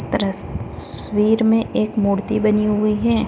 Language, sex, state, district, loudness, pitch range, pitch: Hindi, female, Maharashtra, Solapur, -15 LUFS, 210-220 Hz, 215 Hz